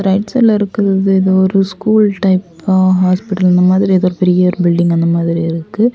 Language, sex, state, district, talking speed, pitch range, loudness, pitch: Tamil, female, Tamil Nadu, Kanyakumari, 170 wpm, 180-195 Hz, -12 LUFS, 190 Hz